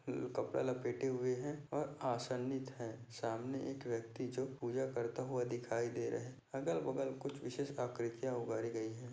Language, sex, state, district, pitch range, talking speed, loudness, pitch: Hindi, male, Maharashtra, Nagpur, 120-135 Hz, 170 wpm, -41 LUFS, 125 Hz